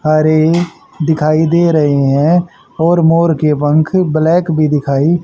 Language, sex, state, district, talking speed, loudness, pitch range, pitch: Hindi, male, Haryana, Jhajjar, 140 wpm, -12 LUFS, 155-170 Hz, 160 Hz